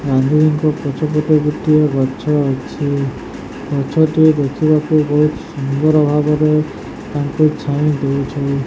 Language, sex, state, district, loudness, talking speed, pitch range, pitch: Odia, male, Odisha, Sambalpur, -15 LUFS, 105 wpm, 140-155 Hz, 150 Hz